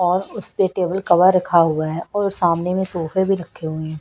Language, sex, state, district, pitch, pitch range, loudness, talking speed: Hindi, female, Bihar, Kaimur, 180 Hz, 165-190 Hz, -19 LUFS, 210 wpm